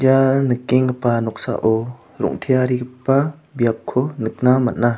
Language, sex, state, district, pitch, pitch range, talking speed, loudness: Garo, male, Meghalaya, South Garo Hills, 125 Hz, 120-135 Hz, 85 wpm, -19 LUFS